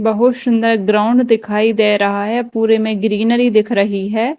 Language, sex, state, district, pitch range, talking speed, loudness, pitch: Hindi, female, Madhya Pradesh, Dhar, 210-230 Hz, 180 wpm, -14 LUFS, 220 Hz